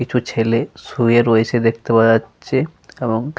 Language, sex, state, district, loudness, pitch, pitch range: Bengali, male, Jharkhand, Sahebganj, -17 LUFS, 115 Hz, 115-125 Hz